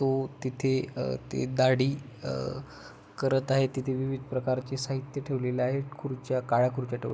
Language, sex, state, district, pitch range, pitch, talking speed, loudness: Marathi, male, Maharashtra, Pune, 130-135 Hz, 130 Hz, 160 wpm, -30 LUFS